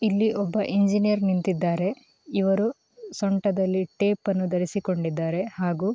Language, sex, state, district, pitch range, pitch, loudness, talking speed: Kannada, female, Karnataka, Mysore, 185-205 Hz, 195 Hz, -25 LUFS, 100 wpm